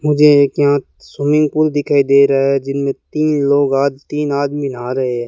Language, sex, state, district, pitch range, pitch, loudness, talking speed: Hindi, male, Rajasthan, Bikaner, 140-150 Hz, 140 Hz, -15 LUFS, 205 wpm